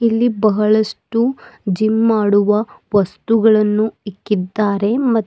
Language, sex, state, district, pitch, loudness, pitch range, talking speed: Kannada, female, Karnataka, Bidar, 215 Hz, -16 LUFS, 205-225 Hz, 80 wpm